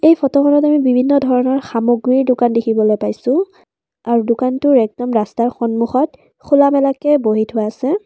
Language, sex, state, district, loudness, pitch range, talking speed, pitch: Assamese, female, Assam, Kamrup Metropolitan, -15 LUFS, 230-280 Hz, 140 wpm, 255 Hz